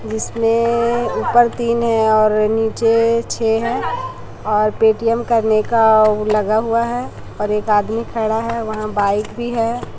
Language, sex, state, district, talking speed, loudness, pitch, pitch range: Hindi, female, Chhattisgarh, Raipur, 150 wpm, -17 LUFS, 225 Hz, 215-235 Hz